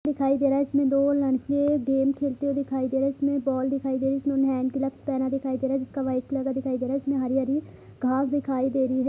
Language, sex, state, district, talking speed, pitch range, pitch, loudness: Hindi, female, Bihar, Purnia, 285 wpm, 265-280 Hz, 270 Hz, -25 LUFS